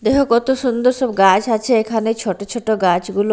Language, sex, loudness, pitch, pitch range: Bengali, female, -16 LUFS, 225 Hz, 200-240 Hz